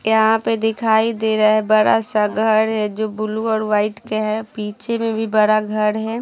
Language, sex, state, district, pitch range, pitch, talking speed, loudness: Hindi, female, Bihar, Saharsa, 215-220 Hz, 220 Hz, 230 wpm, -18 LUFS